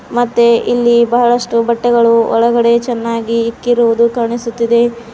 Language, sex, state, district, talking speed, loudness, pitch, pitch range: Kannada, female, Karnataka, Bidar, 95 wpm, -12 LUFS, 235 Hz, 230-240 Hz